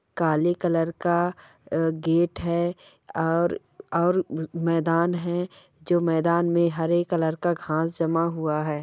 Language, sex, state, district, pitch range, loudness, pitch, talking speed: Hindi, female, Bihar, Saran, 160-175 Hz, -24 LUFS, 170 Hz, 135 wpm